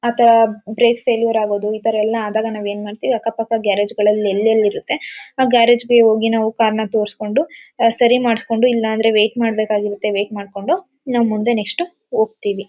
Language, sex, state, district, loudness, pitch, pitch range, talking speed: Kannada, female, Karnataka, Mysore, -17 LUFS, 225 Hz, 210-235 Hz, 180 wpm